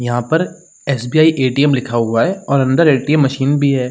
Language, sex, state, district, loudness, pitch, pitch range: Hindi, male, Uttar Pradesh, Jalaun, -15 LUFS, 140 Hz, 125-150 Hz